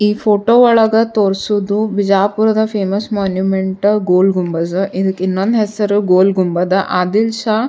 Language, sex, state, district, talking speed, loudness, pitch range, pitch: Kannada, female, Karnataka, Bijapur, 135 wpm, -14 LUFS, 190-215 Hz, 200 Hz